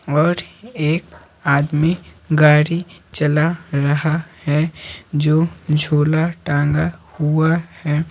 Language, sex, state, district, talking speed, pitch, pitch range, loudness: Hindi, male, Bihar, Patna, 50 wpm, 155 Hz, 150-165 Hz, -18 LUFS